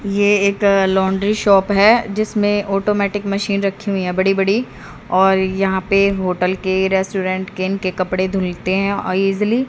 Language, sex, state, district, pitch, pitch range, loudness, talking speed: Hindi, female, Haryana, Jhajjar, 195 Hz, 190-205 Hz, -17 LUFS, 165 wpm